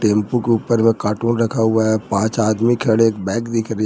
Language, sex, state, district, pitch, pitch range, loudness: Hindi, male, Jharkhand, Ranchi, 115 Hz, 110-115 Hz, -17 LUFS